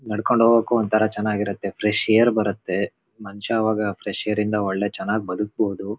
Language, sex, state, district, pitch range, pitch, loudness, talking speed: Kannada, male, Karnataka, Shimoga, 100-110 Hz, 105 Hz, -22 LUFS, 160 wpm